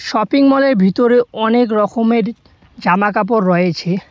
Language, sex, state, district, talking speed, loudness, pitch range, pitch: Bengali, male, West Bengal, Cooch Behar, 100 wpm, -14 LUFS, 190-240 Hz, 225 Hz